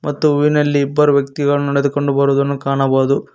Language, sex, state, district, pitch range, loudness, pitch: Kannada, male, Karnataka, Koppal, 140-145 Hz, -15 LUFS, 140 Hz